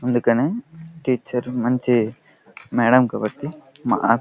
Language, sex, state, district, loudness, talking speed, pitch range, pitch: Telugu, male, Andhra Pradesh, Krishna, -21 LUFS, 85 wpm, 120-145 Hz, 125 Hz